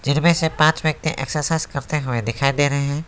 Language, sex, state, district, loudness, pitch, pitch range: Hindi, male, West Bengal, Alipurduar, -20 LUFS, 150 Hz, 140-160 Hz